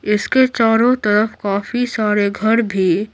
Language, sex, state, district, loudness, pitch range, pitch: Hindi, female, Bihar, Patna, -16 LUFS, 205-235 Hz, 215 Hz